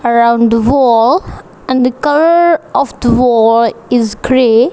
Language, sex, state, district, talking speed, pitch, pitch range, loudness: English, female, Punjab, Kapurthala, 140 wpm, 245 Hz, 230-280 Hz, -10 LUFS